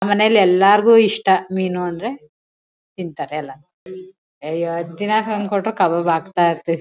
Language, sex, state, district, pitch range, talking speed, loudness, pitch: Kannada, female, Karnataka, Mysore, 165-200 Hz, 125 wpm, -17 LUFS, 180 Hz